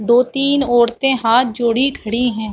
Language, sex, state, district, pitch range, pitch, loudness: Hindi, female, Chhattisgarh, Bastar, 235-265 Hz, 240 Hz, -15 LUFS